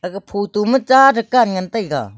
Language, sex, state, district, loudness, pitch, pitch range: Wancho, female, Arunachal Pradesh, Longding, -15 LUFS, 210 Hz, 185-250 Hz